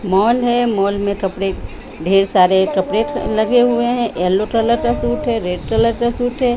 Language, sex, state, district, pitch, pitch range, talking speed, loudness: Hindi, female, Bihar, Patna, 215 Hz, 190-235 Hz, 190 wpm, -16 LUFS